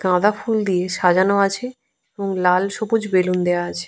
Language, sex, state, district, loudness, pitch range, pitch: Bengali, female, Jharkhand, Jamtara, -19 LUFS, 180-215 Hz, 195 Hz